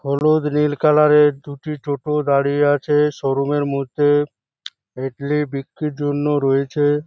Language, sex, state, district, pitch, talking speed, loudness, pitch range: Bengali, male, West Bengal, Jhargram, 145 Hz, 110 wpm, -18 LUFS, 140-150 Hz